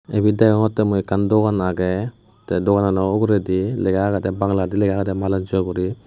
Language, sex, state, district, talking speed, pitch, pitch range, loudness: Chakma, male, Tripura, West Tripura, 160 wpm, 100 Hz, 95-105 Hz, -19 LUFS